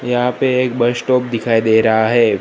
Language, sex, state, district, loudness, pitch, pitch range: Hindi, male, Gujarat, Gandhinagar, -15 LUFS, 120 Hz, 115-125 Hz